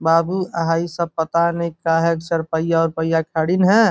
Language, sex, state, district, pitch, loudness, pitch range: Bhojpuri, male, Uttar Pradesh, Gorakhpur, 165 Hz, -19 LUFS, 165-170 Hz